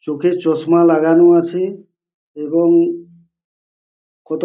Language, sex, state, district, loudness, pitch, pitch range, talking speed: Bengali, male, West Bengal, Purulia, -14 LUFS, 170 Hz, 165-175 Hz, 80 wpm